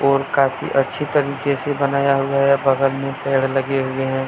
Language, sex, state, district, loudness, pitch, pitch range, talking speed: Hindi, male, Jharkhand, Deoghar, -19 LUFS, 135 Hz, 135-140 Hz, 195 wpm